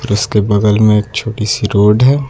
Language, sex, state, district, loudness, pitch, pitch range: Hindi, male, Uttar Pradesh, Lucknow, -12 LUFS, 105 Hz, 105-110 Hz